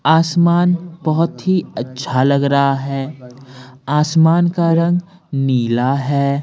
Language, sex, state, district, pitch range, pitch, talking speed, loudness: Hindi, male, Bihar, Patna, 135-170 Hz, 140 Hz, 110 wpm, -16 LUFS